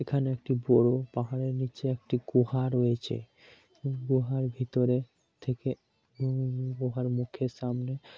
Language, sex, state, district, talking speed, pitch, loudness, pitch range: Bengali, male, West Bengal, Kolkata, 105 wpm, 130 Hz, -30 LUFS, 125-130 Hz